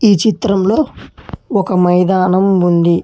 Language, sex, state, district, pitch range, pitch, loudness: Telugu, male, Telangana, Hyderabad, 180-200 Hz, 190 Hz, -13 LUFS